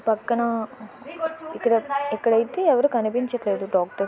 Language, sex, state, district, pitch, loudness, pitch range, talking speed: Telugu, female, Andhra Pradesh, Visakhapatnam, 235 Hz, -23 LUFS, 220-280 Hz, 75 wpm